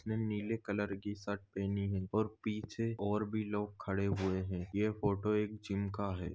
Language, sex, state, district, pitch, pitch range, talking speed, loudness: Hindi, male, Goa, North and South Goa, 105 Hz, 100-105 Hz, 200 wpm, -37 LUFS